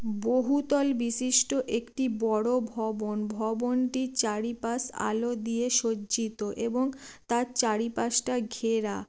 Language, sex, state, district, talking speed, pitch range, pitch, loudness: Bengali, female, West Bengal, Jalpaiguri, 100 wpm, 220-255 Hz, 235 Hz, -28 LUFS